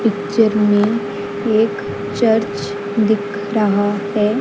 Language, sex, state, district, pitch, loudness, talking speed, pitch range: Hindi, female, Haryana, Rohtak, 210 Hz, -17 LUFS, 95 wpm, 205-220 Hz